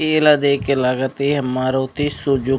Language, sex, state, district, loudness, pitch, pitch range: Chhattisgarhi, male, Chhattisgarh, Raigarh, -18 LUFS, 140 Hz, 130-145 Hz